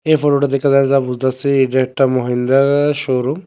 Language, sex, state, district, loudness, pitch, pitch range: Bengali, male, Tripura, West Tripura, -15 LUFS, 135 Hz, 130-140 Hz